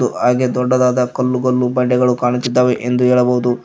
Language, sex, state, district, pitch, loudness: Kannada, male, Karnataka, Koppal, 125 Hz, -15 LUFS